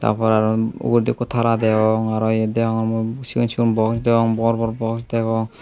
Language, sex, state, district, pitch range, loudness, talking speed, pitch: Chakma, male, Tripura, Unakoti, 110-115 Hz, -19 LUFS, 205 wpm, 115 Hz